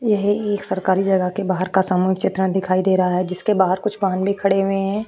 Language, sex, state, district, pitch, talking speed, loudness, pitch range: Hindi, female, Uttar Pradesh, Jyotiba Phule Nagar, 190 Hz, 250 wpm, -19 LUFS, 185-200 Hz